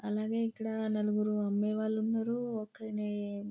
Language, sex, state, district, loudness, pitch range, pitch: Telugu, female, Telangana, Karimnagar, -34 LUFS, 210-220 Hz, 215 Hz